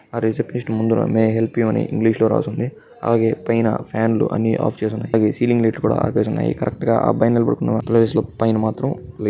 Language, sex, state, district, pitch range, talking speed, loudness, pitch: Telugu, male, Telangana, Nalgonda, 110-115 Hz, 215 wpm, -19 LUFS, 115 Hz